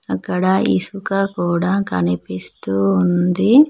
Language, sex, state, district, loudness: Telugu, female, Telangana, Mahabubabad, -18 LUFS